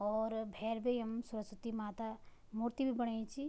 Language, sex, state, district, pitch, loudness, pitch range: Garhwali, female, Uttarakhand, Tehri Garhwal, 225 Hz, -40 LUFS, 220-240 Hz